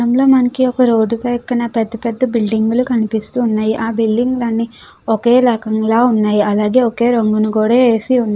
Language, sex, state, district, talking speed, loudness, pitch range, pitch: Telugu, female, Andhra Pradesh, Krishna, 165 wpm, -14 LUFS, 220-245 Hz, 230 Hz